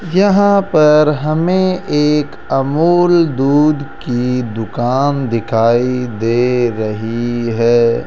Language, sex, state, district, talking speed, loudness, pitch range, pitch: Hindi, male, Rajasthan, Jaipur, 90 wpm, -14 LUFS, 120-155 Hz, 135 Hz